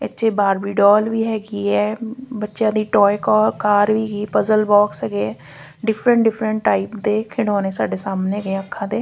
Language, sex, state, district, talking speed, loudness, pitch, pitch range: Punjabi, female, Punjab, Fazilka, 165 wpm, -18 LUFS, 210 Hz, 200-220 Hz